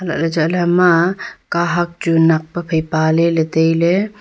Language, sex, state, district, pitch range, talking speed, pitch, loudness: Wancho, female, Arunachal Pradesh, Longding, 160-175 Hz, 140 wpm, 170 Hz, -16 LUFS